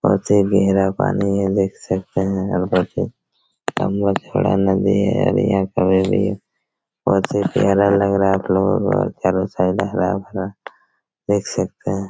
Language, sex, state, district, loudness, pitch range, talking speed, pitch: Hindi, male, Chhattisgarh, Raigarh, -18 LUFS, 95-100 Hz, 95 wpm, 95 Hz